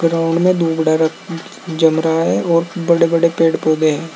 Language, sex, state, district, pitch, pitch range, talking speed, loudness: Hindi, male, Uttar Pradesh, Saharanpur, 165 Hz, 160-170 Hz, 160 wpm, -15 LUFS